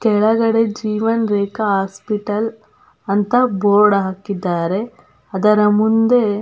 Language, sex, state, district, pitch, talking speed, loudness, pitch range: Kannada, female, Karnataka, Belgaum, 210 Hz, 95 wpm, -17 LUFS, 200-225 Hz